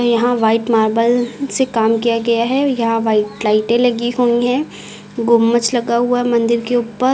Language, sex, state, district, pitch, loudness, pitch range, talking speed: Hindi, female, Uttar Pradesh, Lucknow, 235 Hz, -15 LUFS, 230-245 Hz, 175 wpm